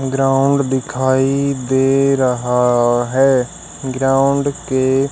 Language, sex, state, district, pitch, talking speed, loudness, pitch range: Hindi, male, Haryana, Jhajjar, 135 Hz, 80 wpm, -15 LUFS, 130-135 Hz